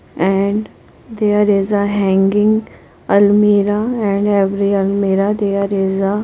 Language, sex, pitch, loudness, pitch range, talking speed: English, female, 200 Hz, -15 LUFS, 195-210 Hz, 125 wpm